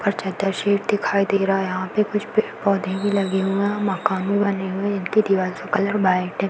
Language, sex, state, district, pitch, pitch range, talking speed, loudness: Hindi, female, Uttar Pradesh, Varanasi, 200 Hz, 190-205 Hz, 250 wpm, -21 LUFS